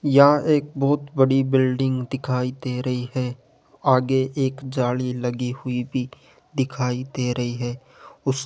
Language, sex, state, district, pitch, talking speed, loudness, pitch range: Hindi, male, Rajasthan, Jaipur, 130 Hz, 150 wpm, -23 LUFS, 125-135 Hz